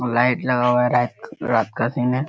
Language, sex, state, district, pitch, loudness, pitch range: Hindi, male, Bihar, Kishanganj, 125 Hz, -20 LUFS, 120-125 Hz